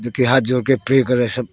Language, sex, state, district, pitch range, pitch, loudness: Hindi, male, Arunachal Pradesh, Longding, 120-130 Hz, 125 Hz, -17 LUFS